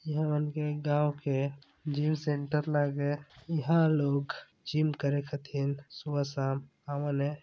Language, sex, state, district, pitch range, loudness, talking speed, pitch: Chhattisgarhi, male, Chhattisgarh, Balrampur, 140-150 Hz, -31 LUFS, 120 wpm, 145 Hz